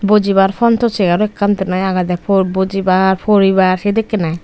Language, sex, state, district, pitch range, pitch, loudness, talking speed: Chakma, female, Tripura, Unakoti, 185-205 Hz, 195 Hz, -14 LUFS, 160 wpm